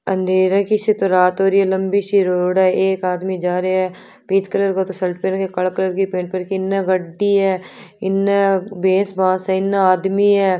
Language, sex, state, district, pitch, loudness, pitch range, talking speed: Marwari, female, Rajasthan, Churu, 190 Hz, -17 LUFS, 185-195 Hz, 210 wpm